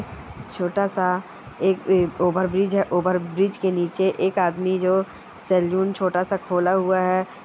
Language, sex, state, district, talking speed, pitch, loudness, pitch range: Hindi, female, Bihar, East Champaran, 130 wpm, 185 Hz, -22 LUFS, 180-190 Hz